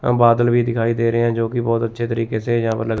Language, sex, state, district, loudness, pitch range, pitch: Hindi, male, Chandigarh, Chandigarh, -18 LUFS, 115-120 Hz, 115 Hz